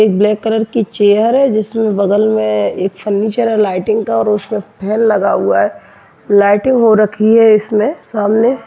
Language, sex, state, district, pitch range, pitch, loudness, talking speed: Hindi, male, Bihar, Bhagalpur, 205-225 Hz, 215 Hz, -13 LUFS, 165 wpm